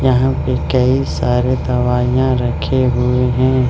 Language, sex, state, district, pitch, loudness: Hindi, male, Arunachal Pradesh, Lower Dibang Valley, 125 Hz, -15 LUFS